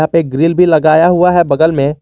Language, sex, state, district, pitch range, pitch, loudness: Hindi, male, Jharkhand, Garhwa, 155-175 Hz, 160 Hz, -10 LUFS